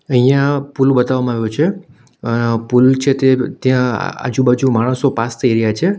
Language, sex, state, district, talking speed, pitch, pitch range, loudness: Gujarati, male, Gujarat, Valsad, 160 wpm, 130 Hz, 120-135 Hz, -15 LUFS